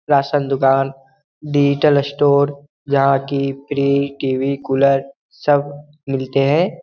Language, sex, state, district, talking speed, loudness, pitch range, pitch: Hindi, male, Bihar, Lakhisarai, 115 wpm, -17 LUFS, 135-145 Hz, 140 Hz